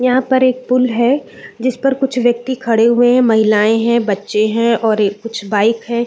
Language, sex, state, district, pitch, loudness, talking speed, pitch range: Hindi, female, Chhattisgarh, Bilaspur, 235 Hz, -14 LUFS, 205 wpm, 220-255 Hz